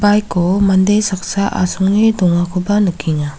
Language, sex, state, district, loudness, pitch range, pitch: Garo, female, Meghalaya, South Garo Hills, -14 LUFS, 175-200 Hz, 190 Hz